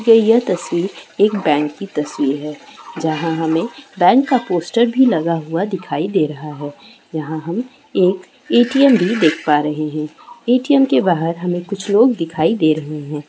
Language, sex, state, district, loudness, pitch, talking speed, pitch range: Hindi, female, West Bengal, Dakshin Dinajpur, -17 LUFS, 175 Hz, 170 wpm, 155-235 Hz